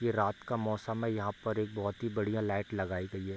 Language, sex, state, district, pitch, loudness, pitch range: Hindi, male, Bihar, Bhagalpur, 105 Hz, -35 LUFS, 100-110 Hz